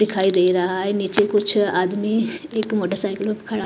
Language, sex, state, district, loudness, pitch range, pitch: Hindi, female, Maharashtra, Mumbai Suburban, -20 LUFS, 190-210 Hz, 205 Hz